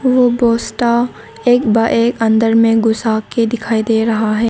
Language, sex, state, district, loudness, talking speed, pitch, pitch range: Hindi, female, Arunachal Pradesh, Lower Dibang Valley, -14 LUFS, 160 wpm, 230 Hz, 225-240 Hz